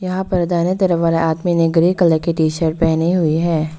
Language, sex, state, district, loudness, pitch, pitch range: Hindi, female, Arunachal Pradesh, Lower Dibang Valley, -16 LUFS, 170 Hz, 160-175 Hz